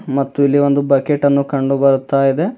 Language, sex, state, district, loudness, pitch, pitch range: Kannada, male, Karnataka, Bidar, -15 LUFS, 140 Hz, 135-145 Hz